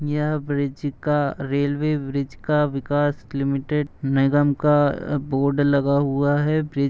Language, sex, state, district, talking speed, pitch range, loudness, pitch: Hindi, male, Uttar Pradesh, Jalaun, 140 wpm, 140-150 Hz, -22 LUFS, 145 Hz